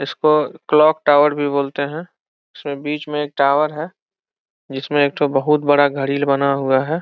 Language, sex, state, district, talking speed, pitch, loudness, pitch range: Hindi, male, Bihar, Saran, 180 wpm, 145 Hz, -17 LUFS, 140-150 Hz